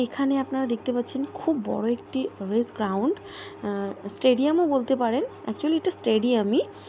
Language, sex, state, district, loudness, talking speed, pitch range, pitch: Bengali, female, West Bengal, Kolkata, -25 LUFS, 175 wpm, 225-280 Hz, 255 Hz